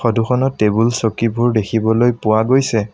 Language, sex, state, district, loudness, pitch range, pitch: Assamese, male, Assam, Sonitpur, -16 LUFS, 110-120 Hz, 115 Hz